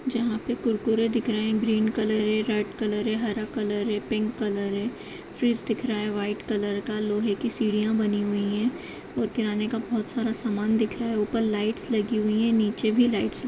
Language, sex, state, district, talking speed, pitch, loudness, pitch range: Hindi, female, Uttar Pradesh, Jyotiba Phule Nagar, 225 wpm, 220 Hz, -25 LUFS, 210-230 Hz